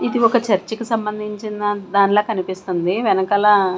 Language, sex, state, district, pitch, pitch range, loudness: Telugu, female, Andhra Pradesh, Sri Satya Sai, 205 Hz, 190-215 Hz, -19 LUFS